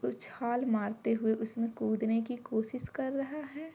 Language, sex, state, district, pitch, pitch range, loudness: Hindi, female, Uttar Pradesh, Jyotiba Phule Nagar, 230 Hz, 220-255 Hz, -34 LUFS